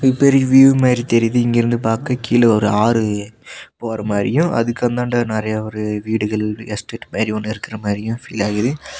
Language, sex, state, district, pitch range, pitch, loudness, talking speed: Tamil, male, Tamil Nadu, Nilgiris, 105-120 Hz, 115 Hz, -17 LUFS, 155 wpm